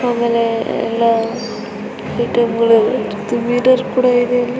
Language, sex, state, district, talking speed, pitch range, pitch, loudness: Kannada, female, Karnataka, Chamarajanagar, 105 wpm, 230-245 Hz, 235 Hz, -16 LUFS